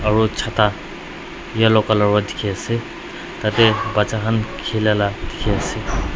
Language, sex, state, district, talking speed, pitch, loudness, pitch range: Nagamese, male, Nagaland, Dimapur, 155 wpm, 110 Hz, -19 LUFS, 105-110 Hz